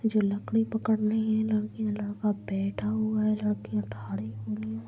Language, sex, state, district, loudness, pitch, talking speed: Hindi, female, Bihar, Madhepura, -29 LUFS, 210 Hz, 170 wpm